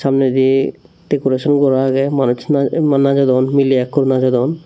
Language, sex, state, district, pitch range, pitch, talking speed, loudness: Chakma, male, Tripura, Dhalai, 130-140 Hz, 135 Hz, 140 wpm, -15 LUFS